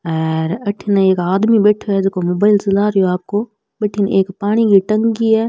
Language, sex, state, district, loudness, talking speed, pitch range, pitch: Rajasthani, female, Rajasthan, Nagaur, -15 LUFS, 195 wpm, 190-210 Hz, 200 Hz